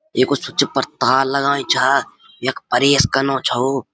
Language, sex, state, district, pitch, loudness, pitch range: Garhwali, male, Uttarakhand, Uttarkashi, 135 Hz, -17 LUFS, 135-140 Hz